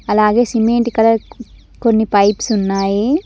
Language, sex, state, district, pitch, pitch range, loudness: Telugu, female, Telangana, Mahabubabad, 225 Hz, 210-235 Hz, -14 LUFS